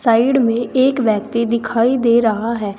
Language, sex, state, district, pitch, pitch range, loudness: Hindi, female, Uttar Pradesh, Saharanpur, 235 Hz, 225-245 Hz, -16 LUFS